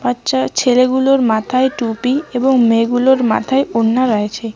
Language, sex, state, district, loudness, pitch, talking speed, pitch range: Bengali, female, West Bengal, Cooch Behar, -14 LUFS, 245 Hz, 120 wpm, 225-260 Hz